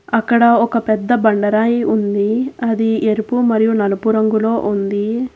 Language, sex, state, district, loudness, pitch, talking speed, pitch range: Telugu, female, Telangana, Hyderabad, -15 LUFS, 220 Hz, 125 wpm, 215-235 Hz